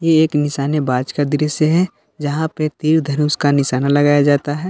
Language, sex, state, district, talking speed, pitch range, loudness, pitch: Hindi, male, Jharkhand, Palamu, 180 wpm, 145-155 Hz, -16 LUFS, 150 Hz